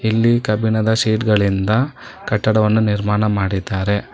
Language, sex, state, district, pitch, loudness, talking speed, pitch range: Kannada, male, Karnataka, Bangalore, 105 Hz, -17 LUFS, 100 wpm, 105-110 Hz